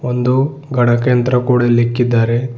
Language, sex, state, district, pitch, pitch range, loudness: Kannada, male, Karnataka, Bidar, 125 Hz, 120-125 Hz, -14 LUFS